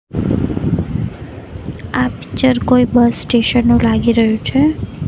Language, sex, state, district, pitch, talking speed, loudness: Gujarati, female, Gujarat, Gandhinagar, 230 Hz, 105 wpm, -15 LUFS